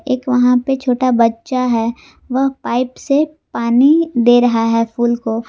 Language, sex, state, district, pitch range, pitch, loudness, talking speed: Hindi, female, Jharkhand, Garhwa, 235-265 Hz, 250 Hz, -15 LUFS, 165 wpm